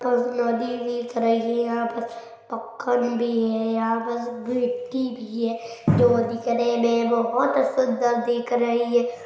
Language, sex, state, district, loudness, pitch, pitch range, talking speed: Hindi, male, Chhattisgarh, Balrampur, -23 LUFS, 235 Hz, 230-240 Hz, 145 wpm